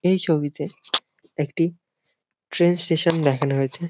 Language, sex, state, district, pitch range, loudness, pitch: Bengali, male, West Bengal, Jhargram, 145-175 Hz, -22 LUFS, 165 Hz